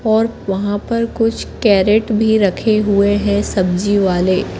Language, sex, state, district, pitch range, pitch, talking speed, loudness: Hindi, female, Madhya Pradesh, Katni, 195-220 Hz, 205 Hz, 145 wpm, -15 LUFS